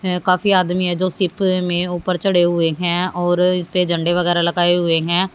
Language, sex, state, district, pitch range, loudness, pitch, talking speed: Hindi, female, Haryana, Jhajjar, 175-185 Hz, -17 LUFS, 180 Hz, 215 wpm